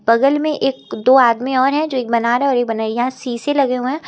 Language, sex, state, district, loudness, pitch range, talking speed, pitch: Hindi, female, Uttar Pradesh, Lucknow, -16 LUFS, 240-275 Hz, 265 wpm, 260 Hz